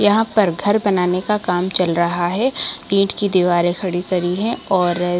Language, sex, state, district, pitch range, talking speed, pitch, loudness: Hindi, female, Bihar, Kishanganj, 175-205 Hz, 195 wpm, 185 Hz, -18 LUFS